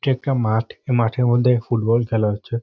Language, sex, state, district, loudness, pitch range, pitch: Bengali, male, West Bengal, North 24 Parganas, -20 LUFS, 115-125 Hz, 120 Hz